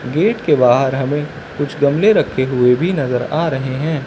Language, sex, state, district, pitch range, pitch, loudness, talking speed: Hindi, male, Uttar Pradesh, Lucknow, 130-155 Hz, 140 Hz, -16 LUFS, 190 wpm